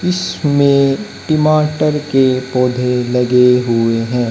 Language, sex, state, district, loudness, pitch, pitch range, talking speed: Hindi, male, Haryana, Jhajjar, -14 LUFS, 130 Hz, 125-150 Hz, 110 wpm